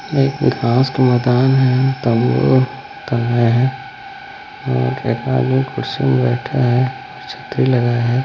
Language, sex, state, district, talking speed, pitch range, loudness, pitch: Hindi, male, Chhattisgarh, Bilaspur, 140 wpm, 120-135 Hz, -16 LUFS, 130 Hz